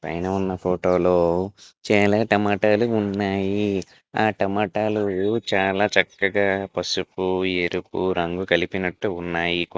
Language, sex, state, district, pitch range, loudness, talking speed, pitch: Telugu, male, Andhra Pradesh, Visakhapatnam, 90-100 Hz, -22 LUFS, 85 wpm, 95 Hz